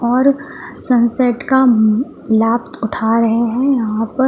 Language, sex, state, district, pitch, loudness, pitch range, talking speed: Hindi, female, Jharkhand, Palamu, 240 Hz, -15 LUFS, 225-260 Hz, 125 wpm